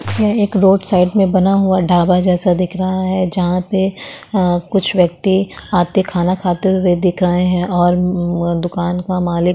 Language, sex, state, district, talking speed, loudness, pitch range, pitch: Hindi, female, Uttarakhand, Tehri Garhwal, 190 wpm, -15 LUFS, 175-190 Hz, 180 Hz